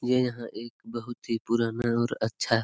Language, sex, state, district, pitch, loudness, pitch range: Hindi, male, Jharkhand, Sahebganj, 115 Hz, -29 LUFS, 115-120 Hz